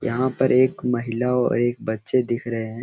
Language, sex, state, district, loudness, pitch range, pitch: Hindi, male, Bihar, Araria, -22 LUFS, 115-125 Hz, 120 Hz